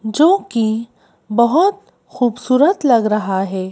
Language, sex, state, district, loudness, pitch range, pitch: Hindi, female, Madhya Pradesh, Bhopal, -16 LUFS, 215-295 Hz, 235 Hz